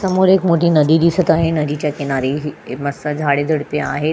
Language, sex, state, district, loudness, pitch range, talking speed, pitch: Marathi, female, Goa, North and South Goa, -16 LUFS, 145-170 Hz, 190 wpm, 150 Hz